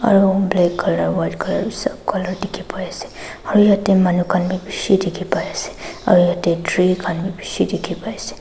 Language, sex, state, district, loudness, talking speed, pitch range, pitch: Nagamese, female, Nagaland, Dimapur, -18 LUFS, 170 wpm, 175-195 Hz, 180 Hz